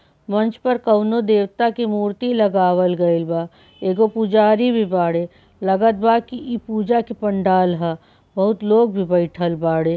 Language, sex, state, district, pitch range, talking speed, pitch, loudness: Bhojpuri, female, Bihar, Saran, 175-225 Hz, 155 wpm, 205 Hz, -18 LUFS